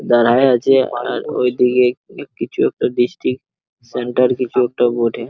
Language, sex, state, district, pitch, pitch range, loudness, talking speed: Bengali, male, West Bengal, Purulia, 125 Hz, 120-125 Hz, -16 LUFS, 125 wpm